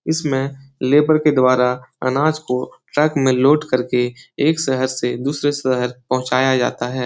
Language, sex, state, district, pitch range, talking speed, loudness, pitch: Hindi, male, Bihar, Jahanabad, 125-145 Hz, 155 wpm, -18 LUFS, 130 Hz